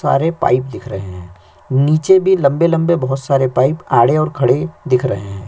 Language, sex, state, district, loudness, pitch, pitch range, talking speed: Hindi, male, Chhattisgarh, Sukma, -15 LUFS, 135 Hz, 120-160 Hz, 220 wpm